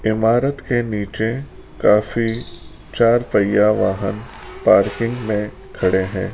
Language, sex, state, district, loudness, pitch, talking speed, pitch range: Hindi, male, Rajasthan, Jaipur, -18 LUFS, 110 Hz, 105 wpm, 100-120 Hz